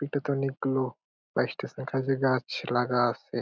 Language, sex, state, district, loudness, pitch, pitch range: Bengali, male, West Bengal, Purulia, -29 LUFS, 135 Hz, 125-135 Hz